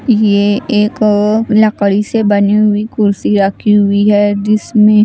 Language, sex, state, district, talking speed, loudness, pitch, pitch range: Hindi, female, Chandigarh, Chandigarh, 130 wpm, -11 LUFS, 210 Hz, 205-215 Hz